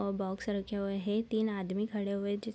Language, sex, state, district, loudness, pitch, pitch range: Hindi, female, Bihar, Sitamarhi, -34 LUFS, 200 Hz, 200-215 Hz